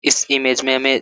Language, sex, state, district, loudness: Hindi, male, Jharkhand, Sahebganj, -16 LUFS